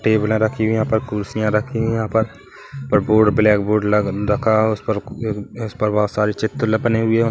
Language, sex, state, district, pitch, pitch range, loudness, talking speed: Hindi, male, Chhattisgarh, Kabirdham, 110 Hz, 105-110 Hz, -19 LUFS, 195 wpm